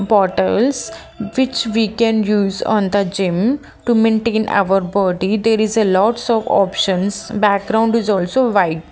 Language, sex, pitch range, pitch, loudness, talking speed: English, female, 195-225 Hz, 215 Hz, -16 LUFS, 155 wpm